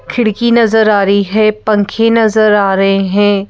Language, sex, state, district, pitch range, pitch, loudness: Hindi, female, Madhya Pradesh, Bhopal, 200-220 Hz, 215 Hz, -11 LUFS